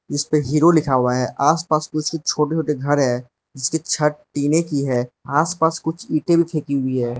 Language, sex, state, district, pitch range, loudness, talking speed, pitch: Hindi, male, Arunachal Pradesh, Lower Dibang Valley, 135-160 Hz, -20 LUFS, 200 wpm, 150 Hz